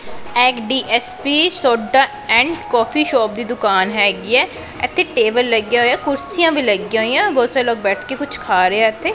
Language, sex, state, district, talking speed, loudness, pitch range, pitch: Punjabi, female, Punjab, Pathankot, 175 wpm, -16 LUFS, 225-280 Hz, 240 Hz